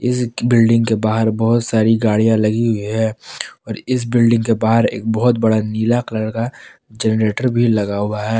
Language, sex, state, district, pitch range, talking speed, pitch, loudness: Hindi, male, Jharkhand, Palamu, 110-115 Hz, 185 wpm, 115 Hz, -16 LUFS